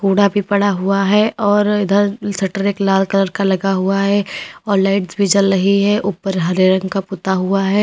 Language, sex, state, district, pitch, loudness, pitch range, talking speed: Hindi, female, Uttar Pradesh, Lalitpur, 195 Hz, -16 LUFS, 195-200 Hz, 215 wpm